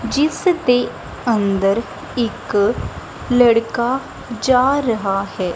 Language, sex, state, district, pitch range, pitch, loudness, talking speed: Punjabi, female, Punjab, Kapurthala, 205-255 Hz, 235 Hz, -18 LUFS, 85 wpm